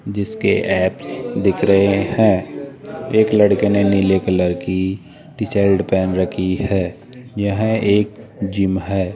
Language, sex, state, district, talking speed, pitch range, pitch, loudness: Hindi, male, Rajasthan, Jaipur, 130 wpm, 95-110 Hz, 100 Hz, -17 LUFS